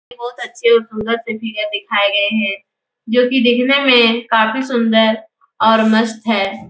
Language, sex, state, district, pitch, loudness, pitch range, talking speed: Hindi, female, Bihar, Supaul, 225 Hz, -14 LUFS, 215-240 Hz, 160 wpm